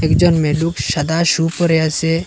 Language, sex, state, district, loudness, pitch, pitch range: Bengali, male, Assam, Hailakandi, -15 LUFS, 165 Hz, 155-165 Hz